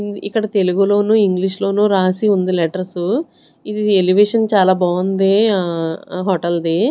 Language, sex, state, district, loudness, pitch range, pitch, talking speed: Telugu, female, Andhra Pradesh, Sri Satya Sai, -16 LUFS, 185-205 Hz, 195 Hz, 120 wpm